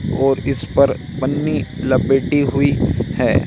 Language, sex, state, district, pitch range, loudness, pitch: Hindi, male, Bihar, Samastipur, 135-145 Hz, -17 LUFS, 140 Hz